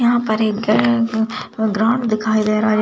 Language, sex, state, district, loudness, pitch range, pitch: Hindi, female, West Bengal, Dakshin Dinajpur, -17 LUFS, 215-230 Hz, 220 Hz